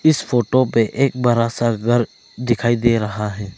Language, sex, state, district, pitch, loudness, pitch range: Hindi, male, Arunachal Pradesh, Lower Dibang Valley, 120 Hz, -18 LUFS, 115-125 Hz